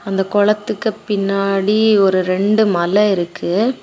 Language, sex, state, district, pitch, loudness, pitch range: Tamil, female, Tamil Nadu, Kanyakumari, 205 Hz, -16 LUFS, 195-215 Hz